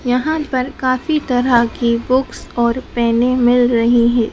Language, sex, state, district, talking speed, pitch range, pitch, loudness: Hindi, female, Madhya Pradesh, Dhar, 150 wpm, 235-255 Hz, 245 Hz, -16 LUFS